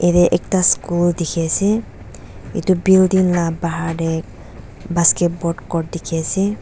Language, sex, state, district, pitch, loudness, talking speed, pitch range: Nagamese, female, Nagaland, Dimapur, 170 Hz, -17 LUFS, 110 wpm, 165-180 Hz